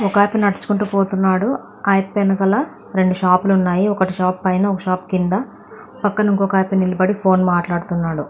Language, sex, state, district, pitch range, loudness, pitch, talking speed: Telugu, female, Andhra Pradesh, Anantapur, 185-200 Hz, -17 LUFS, 190 Hz, 160 wpm